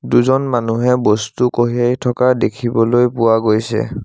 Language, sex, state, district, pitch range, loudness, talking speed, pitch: Assamese, male, Assam, Sonitpur, 115-125 Hz, -15 LUFS, 120 wpm, 120 Hz